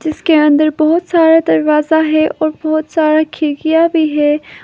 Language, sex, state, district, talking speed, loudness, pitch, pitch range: Hindi, female, Arunachal Pradesh, Papum Pare, 155 wpm, -12 LUFS, 310 Hz, 305-320 Hz